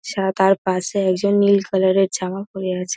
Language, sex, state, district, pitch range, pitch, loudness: Bengali, female, West Bengal, Dakshin Dinajpur, 185-200 Hz, 190 Hz, -19 LUFS